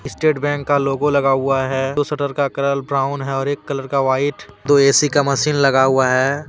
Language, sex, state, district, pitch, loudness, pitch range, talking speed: Hindi, male, Jharkhand, Deoghar, 140 Hz, -17 LUFS, 135-145 Hz, 230 wpm